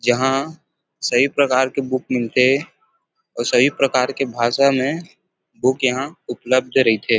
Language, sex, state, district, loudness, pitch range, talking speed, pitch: Chhattisgarhi, male, Chhattisgarh, Rajnandgaon, -18 LUFS, 125-140 Hz, 135 wpm, 130 Hz